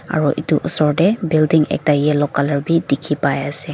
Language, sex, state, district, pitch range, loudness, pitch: Nagamese, female, Nagaland, Dimapur, 145-160 Hz, -17 LUFS, 150 Hz